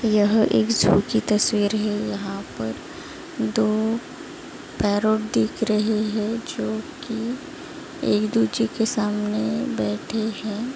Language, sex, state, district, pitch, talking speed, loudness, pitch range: Hindi, female, Maharashtra, Chandrapur, 215 Hz, 115 wpm, -23 LUFS, 205-230 Hz